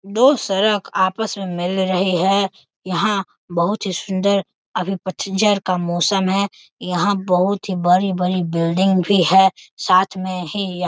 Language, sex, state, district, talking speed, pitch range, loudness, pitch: Hindi, male, Bihar, Sitamarhi, 155 wpm, 180-200 Hz, -18 LUFS, 190 Hz